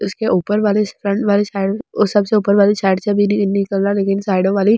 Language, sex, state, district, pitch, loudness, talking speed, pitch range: Hindi, female, Delhi, New Delhi, 200 Hz, -16 LUFS, 165 wpm, 195-210 Hz